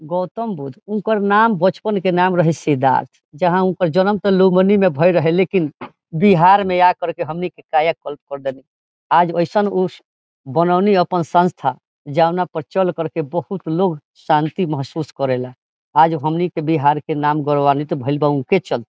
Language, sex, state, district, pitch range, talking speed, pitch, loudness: Bhojpuri, male, Bihar, Saran, 150-185 Hz, 175 wpm, 170 Hz, -17 LUFS